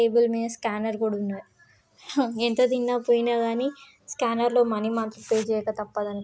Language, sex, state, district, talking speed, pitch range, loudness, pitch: Telugu, female, Andhra Pradesh, Guntur, 165 wpm, 220-240 Hz, -25 LUFS, 230 Hz